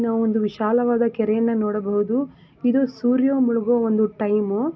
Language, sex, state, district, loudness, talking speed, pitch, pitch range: Kannada, female, Karnataka, Gulbarga, -21 LUFS, 140 wpm, 230 Hz, 215-245 Hz